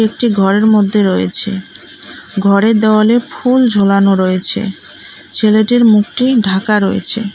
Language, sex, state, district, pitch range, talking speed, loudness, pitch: Bengali, female, West Bengal, Cooch Behar, 195-220 Hz, 105 wpm, -11 LUFS, 210 Hz